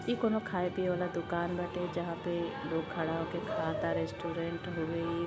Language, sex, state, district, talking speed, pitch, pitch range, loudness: Bhojpuri, male, Uttar Pradesh, Deoria, 180 wpm, 170 Hz, 165-180 Hz, -35 LUFS